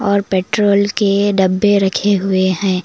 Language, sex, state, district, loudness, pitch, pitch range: Hindi, female, Karnataka, Koppal, -14 LUFS, 200 Hz, 190-205 Hz